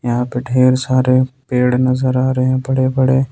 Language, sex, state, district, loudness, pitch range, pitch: Hindi, male, Jharkhand, Ranchi, -15 LUFS, 125-130 Hz, 130 Hz